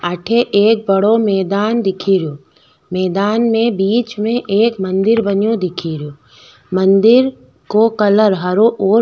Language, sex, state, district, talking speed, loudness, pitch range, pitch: Rajasthani, female, Rajasthan, Nagaur, 125 wpm, -14 LUFS, 185-225 Hz, 200 Hz